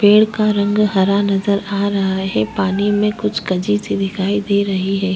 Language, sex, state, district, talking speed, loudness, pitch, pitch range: Hindi, female, Chhattisgarh, Korba, 195 wpm, -17 LUFS, 200 Hz, 195-205 Hz